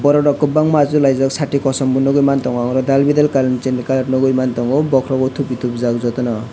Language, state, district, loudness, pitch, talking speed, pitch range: Kokborok, Tripura, West Tripura, -16 LUFS, 135 Hz, 165 wpm, 125-140 Hz